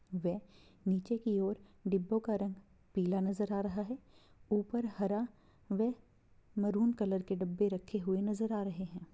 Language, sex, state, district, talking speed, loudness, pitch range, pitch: Hindi, female, Bihar, Begusarai, 170 wpm, -36 LUFS, 190-215 Hz, 200 Hz